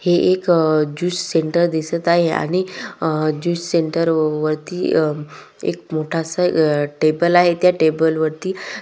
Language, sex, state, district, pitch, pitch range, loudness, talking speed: Marathi, female, Maharashtra, Solapur, 165 Hz, 155-175 Hz, -18 LUFS, 145 wpm